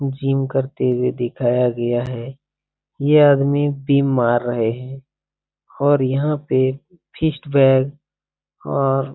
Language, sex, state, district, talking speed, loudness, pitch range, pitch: Hindi, male, Bihar, Saran, 125 wpm, -18 LUFS, 125-140 Hz, 135 Hz